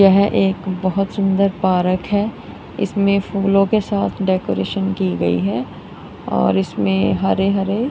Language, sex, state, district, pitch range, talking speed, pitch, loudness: Hindi, female, Punjab, Kapurthala, 185-200 Hz, 135 wpm, 195 Hz, -18 LUFS